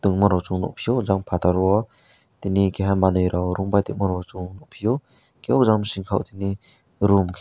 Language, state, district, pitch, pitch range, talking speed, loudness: Kokborok, Tripura, West Tripura, 100 Hz, 95-100 Hz, 180 wpm, -22 LUFS